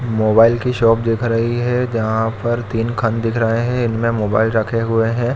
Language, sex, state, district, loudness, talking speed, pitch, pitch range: Hindi, male, Chhattisgarh, Bilaspur, -17 LUFS, 215 wpm, 115 Hz, 115-120 Hz